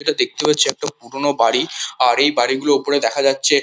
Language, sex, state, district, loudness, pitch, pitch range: Bengali, male, West Bengal, Kolkata, -17 LUFS, 140 Hz, 130-150 Hz